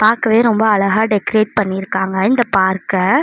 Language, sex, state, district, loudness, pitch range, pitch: Tamil, female, Tamil Nadu, Namakkal, -15 LUFS, 190-220 Hz, 210 Hz